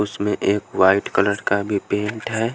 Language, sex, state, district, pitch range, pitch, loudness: Hindi, male, Haryana, Jhajjar, 100-110 Hz, 105 Hz, -20 LUFS